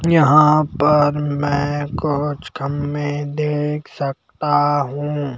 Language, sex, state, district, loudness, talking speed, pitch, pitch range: Hindi, male, Madhya Pradesh, Bhopal, -18 LUFS, 90 wpm, 145 Hz, 145-150 Hz